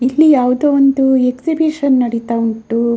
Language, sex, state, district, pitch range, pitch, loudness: Kannada, female, Karnataka, Dakshina Kannada, 235-285 Hz, 255 Hz, -13 LUFS